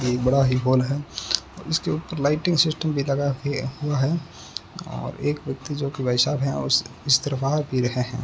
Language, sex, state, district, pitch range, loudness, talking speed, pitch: Hindi, male, Rajasthan, Bikaner, 130-150 Hz, -23 LUFS, 195 wpm, 140 Hz